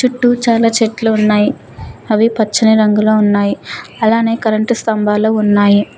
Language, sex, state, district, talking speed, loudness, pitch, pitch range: Telugu, female, Telangana, Mahabubabad, 120 wpm, -13 LUFS, 220 Hz, 210-230 Hz